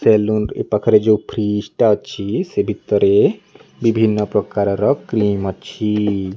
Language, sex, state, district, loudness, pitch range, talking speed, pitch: Odia, male, Odisha, Nuapada, -17 LUFS, 100-110 Hz, 120 wpm, 105 Hz